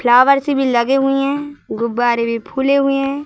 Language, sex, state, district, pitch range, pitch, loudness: Hindi, female, Madhya Pradesh, Katni, 240-275 Hz, 270 Hz, -16 LUFS